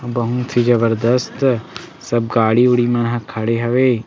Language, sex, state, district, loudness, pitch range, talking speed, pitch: Chhattisgarhi, male, Chhattisgarh, Sarguja, -17 LUFS, 115-125 Hz, 135 wpm, 120 Hz